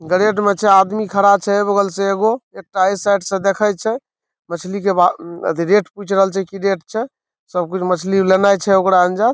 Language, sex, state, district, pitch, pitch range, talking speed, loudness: Maithili, male, Bihar, Saharsa, 195 Hz, 190-205 Hz, 230 wpm, -16 LUFS